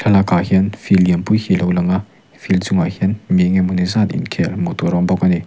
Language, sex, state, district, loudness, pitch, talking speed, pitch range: Mizo, male, Mizoram, Aizawl, -16 LUFS, 95 Hz, 275 wpm, 90-100 Hz